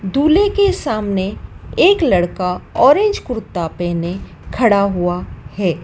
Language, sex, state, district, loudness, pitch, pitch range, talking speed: Hindi, female, Madhya Pradesh, Dhar, -16 LUFS, 200 Hz, 180-295 Hz, 115 wpm